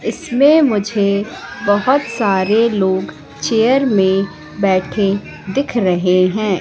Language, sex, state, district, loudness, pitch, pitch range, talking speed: Hindi, female, Madhya Pradesh, Katni, -15 LUFS, 200 Hz, 190-230 Hz, 100 wpm